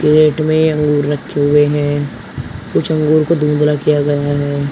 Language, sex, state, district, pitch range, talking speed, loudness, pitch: Hindi, male, Uttar Pradesh, Shamli, 145-155 Hz, 165 wpm, -14 LUFS, 150 Hz